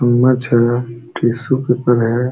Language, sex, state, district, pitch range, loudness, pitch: Hindi, male, Uttar Pradesh, Jalaun, 120-125 Hz, -15 LUFS, 120 Hz